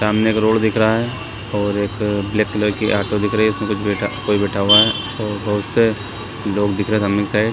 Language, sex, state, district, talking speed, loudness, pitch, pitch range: Hindi, male, Chhattisgarh, Raigarh, 265 wpm, -18 LUFS, 105 Hz, 100-110 Hz